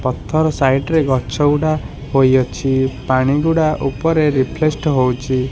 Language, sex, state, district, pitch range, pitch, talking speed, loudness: Odia, male, Odisha, Khordha, 130-155 Hz, 135 Hz, 120 wpm, -16 LUFS